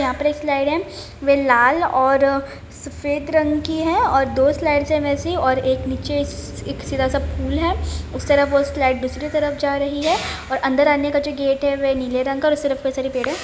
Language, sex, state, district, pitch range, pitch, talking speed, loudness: Hindi, female, Bihar, Begusarai, 260-295 Hz, 280 Hz, 230 wpm, -19 LUFS